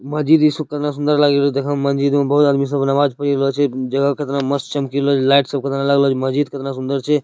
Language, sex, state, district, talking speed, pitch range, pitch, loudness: Hindi, male, Bihar, Purnia, 190 wpm, 140-145 Hz, 140 Hz, -17 LUFS